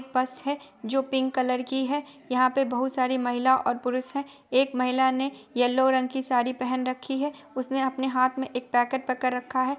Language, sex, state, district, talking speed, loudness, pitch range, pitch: Hindi, female, Bihar, Gopalganj, 210 wpm, -26 LUFS, 255-265 Hz, 260 Hz